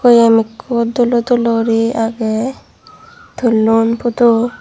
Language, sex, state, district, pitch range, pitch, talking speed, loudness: Chakma, female, Tripura, Dhalai, 225-245 Hz, 235 Hz, 105 wpm, -14 LUFS